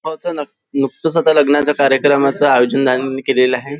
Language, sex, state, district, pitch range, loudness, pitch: Marathi, male, Maharashtra, Nagpur, 135-150 Hz, -15 LUFS, 140 Hz